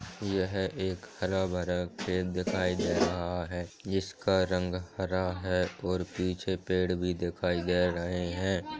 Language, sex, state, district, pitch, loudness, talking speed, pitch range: Hindi, male, Jharkhand, Jamtara, 90 Hz, -31 LUFS, 145 wpm, 90-95 Hz